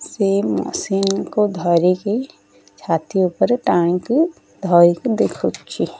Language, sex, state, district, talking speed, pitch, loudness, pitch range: Odia, female, Odisha, Nuapada, 100 wpm, 190 Hz, -18 LUFS, 175-215 Hz